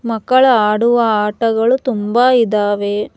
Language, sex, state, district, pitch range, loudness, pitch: Kannada, female, Karnataka, Bangalore, 210-245 Hz, -14 LUFS, 230 Hz